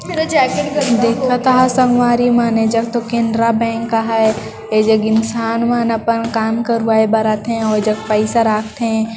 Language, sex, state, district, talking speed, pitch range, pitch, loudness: Chhattisgarhi, female, Chhattisgarh, Sarguja, 145 wpm, 220-235 Hz, 230 Hz, -15 LUFS